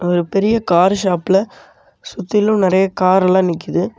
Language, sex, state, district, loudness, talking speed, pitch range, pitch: Tamil, male, Tamil Nadu, Namakkal, -15 LUFS, 120 wpm, 180-200 Hz, 190 Hz